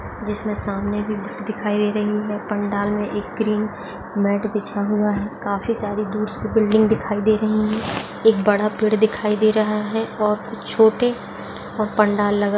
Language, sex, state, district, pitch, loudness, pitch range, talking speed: Hindi, female, Maharashtra, Dhule, 210 Hz, -21 LUFS, 205-215 Hz, 190 wpm